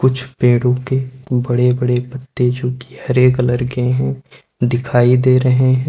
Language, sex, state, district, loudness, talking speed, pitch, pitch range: Hindi, male, Uttar Pradesh, Lucknow, -16 LUFS, 165 wpm, 125 Hz, 125-130 Hz